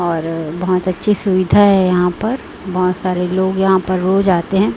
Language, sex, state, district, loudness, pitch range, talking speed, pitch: Hindi, female, Chhattisgarh, Raipur, -15 LUFS, 180-195 Hz, 190 wpm, 185 Hz